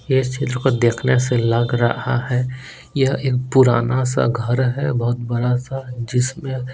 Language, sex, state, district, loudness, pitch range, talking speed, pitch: Hindi, male, Bihar, Patna, -19 LUFS, 120-130 Hz, 160 wpm, 125 Hz